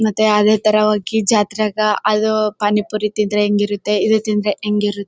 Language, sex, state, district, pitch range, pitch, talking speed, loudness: Kannada, female, Karnataka, Bellary, 210-215 Hz, 210 Hz, 140 wpm, -16 LUFS